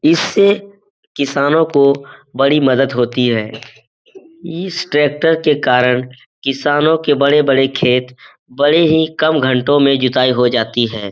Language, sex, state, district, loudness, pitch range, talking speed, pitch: Hindi, male, Bihar, Jahanabad, -14 LUFS, 125-160 Hz, 130 wpm, 140 Hz